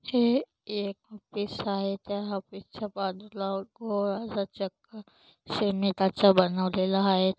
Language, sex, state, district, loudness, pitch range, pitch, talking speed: Marathi, female, Maharashtra, Solapur, -29 LUFS, 195-210 Hz, 200 Hz, 115 wpm